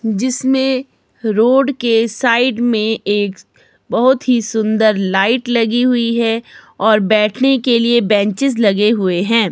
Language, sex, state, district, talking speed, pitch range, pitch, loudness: Hindi, female, Himachal Pradesh, Shimla, 130 wpm, 215-250 Hz, 230 Hz, -14 LUFS